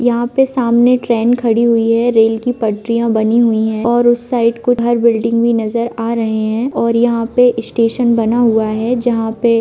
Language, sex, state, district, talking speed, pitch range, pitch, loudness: Hindi, female, Jharkhand, Jamtara, 185 wpm, 225-240 Hz, 235 Hz, -14 LUFS